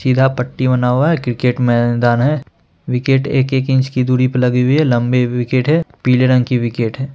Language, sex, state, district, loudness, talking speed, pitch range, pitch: Hindi, male, Bihar, Purnia, -15 LUFS, 250 wpm, 125-135 Hz, 125 Hz